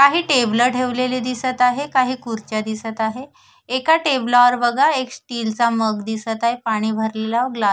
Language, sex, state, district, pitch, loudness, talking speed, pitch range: Marathi, female, Maharashtra, Sindhudurg, 245 Hz, -19 LUFS, 170 wpm, 220-255 Hz